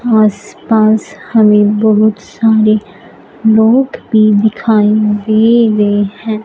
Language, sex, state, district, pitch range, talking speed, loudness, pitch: Hindi, female, Punjab, Fazilka, 210-220 Hz, 95 wpm, -11 LUFS, 215 Hz